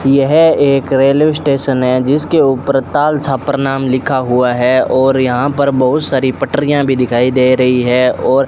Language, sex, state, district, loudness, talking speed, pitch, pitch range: Hindi, male, Rajasthan, Bikaner, -12 LUFS, 185 wpm, 135 Hz, 130-140 Hz